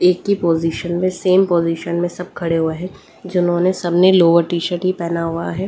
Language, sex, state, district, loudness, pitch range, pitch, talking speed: Hindi, female, Delhi, New Delhi, -17 LUFS, 170-185 Hz, 175 Hz, 200 wpm